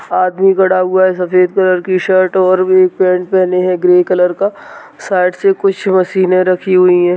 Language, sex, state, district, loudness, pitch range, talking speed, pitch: Hindi, female, Maharashtra, Dhule, -12 LUFS, 180-190 Hz, 195 wpm, 185 Hz